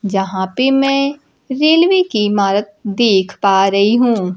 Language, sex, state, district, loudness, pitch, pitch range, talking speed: Hindi, female, Bihar, Kaimur, -14 LUFS, 210 Hz, 195-270 Hz, 135 wpm